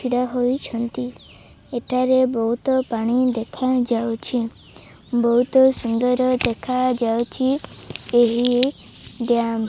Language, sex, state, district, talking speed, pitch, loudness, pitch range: Odia, female, Odisha, Malkangiri, 75 wpm, 245 Hz, -20 LUFS, 235-255 Hz